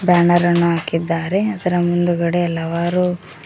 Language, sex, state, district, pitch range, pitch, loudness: Kannada, female, Karnataka, Koppal, 170-180 Hz, 175 Hz, -17 LUFS